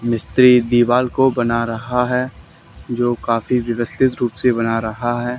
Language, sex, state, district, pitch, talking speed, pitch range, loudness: Hindi, male, Haryana, Charkhi Dadri, 120 Hz, 155 wpm, 115-125 Hz, -17 LUFS